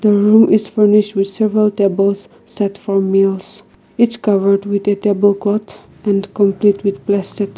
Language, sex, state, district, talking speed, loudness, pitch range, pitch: English, female, Nagaland, Kohima, 160 wpm, -15 LUFS, 200-210 Hz, 205 Hz